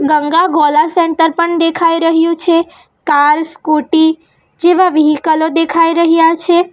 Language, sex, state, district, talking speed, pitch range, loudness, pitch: Gujarati, female, Gujarat, Valsad, 125 wpm, 315-340 Hz, -11 LUFS, 330 Hz